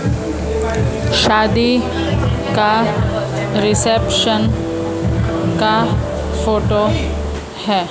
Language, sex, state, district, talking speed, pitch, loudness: Hindi, female, Maharashtra, Mumbai Suburban, 45 wpm, 75 Hz, -16 LUFS